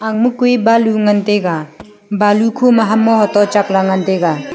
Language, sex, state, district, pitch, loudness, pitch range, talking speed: Wancho, female, Arunachal Pradesh, Longding, 210 Hz, -13 LUFS, 195-225 Hz, 195 wpm